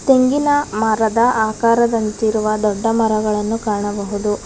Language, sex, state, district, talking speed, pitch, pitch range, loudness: Kannada, female, Karnataka, Bangalore, 80 wpm, 220 Hz, 210-230 Hz, -17 LUFS